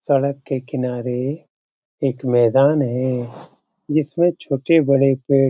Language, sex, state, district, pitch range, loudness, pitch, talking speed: Hindi, male, Bihar, Jamui, 125-145 Hz, -19 LUFS, 135 Hz, 120 wpm